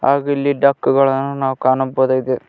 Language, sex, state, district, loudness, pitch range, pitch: Kannada, male, Karnataka, Koppal, -16 LUFS, 130-140 Hz, 135 Hz